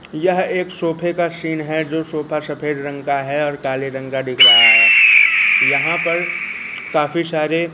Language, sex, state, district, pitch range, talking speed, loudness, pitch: Hindi, male, Madhya Pradesh, Katni, 140-170 Hz, 180 wpm, -14 LUFS, 155 Hz